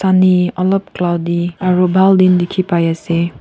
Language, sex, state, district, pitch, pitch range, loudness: Nagamese, female, Nagaland, Kohima, 180 Hz, 170-185 Hz, -14 LUFS